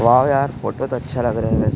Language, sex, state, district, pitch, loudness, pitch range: Hindi, male, Chhattisgarh, Jashpur, 120 Hz, -19 LUFS, 115-130 Hz